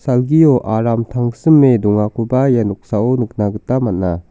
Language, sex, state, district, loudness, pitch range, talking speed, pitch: Garo, male, Meghalaya, South Garo Hills, -15 LUFS, 105-130 Hz, 125 wpm, 120 Hz